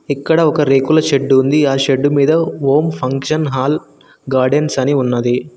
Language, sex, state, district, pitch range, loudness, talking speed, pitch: Telugu, male, Telangana, Mahabubabad, 135-150 Hz, -14 LUFS, 150 wpm, 140 Hz